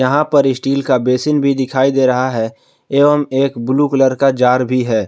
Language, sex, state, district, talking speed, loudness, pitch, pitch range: Hindi, male, Jharkhand, Palamu, 215 wpm, -14 LUFS, 135 Hz, 125-140 Hz